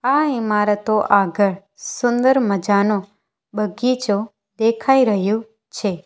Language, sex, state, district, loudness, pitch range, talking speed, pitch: Gujarati, female, Gujarat, Valsad, -18 LUFS, 200-240 Hz, 90 wpm, 210 Hz